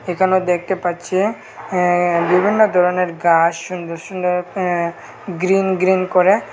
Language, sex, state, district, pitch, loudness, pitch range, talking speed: Bengali, male, Tripura, Unakoti, 180 Hz, -17 LUFS, 175-190 Hz, 130 wpm